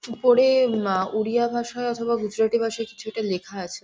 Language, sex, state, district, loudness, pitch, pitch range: Bengali, female, West Bengal, Jhargram, -23 LUFS, 225 Hz, 210-240 Hz